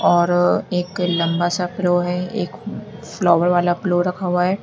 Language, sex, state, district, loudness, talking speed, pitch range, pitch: Hindi, female, Uttar Pradesh, Lalitpur, -19 LUFS, 170 wpm, 175-180 Hz, 180 Hz